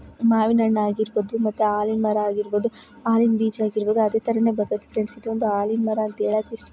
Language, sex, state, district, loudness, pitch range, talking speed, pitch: Kannada, female, Karnataka, Bijapur, -22 LUFS, 210-225 Hz, 185 wpm, 220 Hz